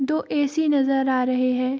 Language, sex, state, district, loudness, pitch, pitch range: Hindi, female, Bihar, Darbhanga, -22 LUFS, 270 Hz, 255-290 Hz